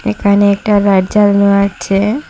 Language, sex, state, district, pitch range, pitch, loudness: Bengali, female, Assam, Hailakandi, 200-205 Hz, 200 Hz, -11 LUFS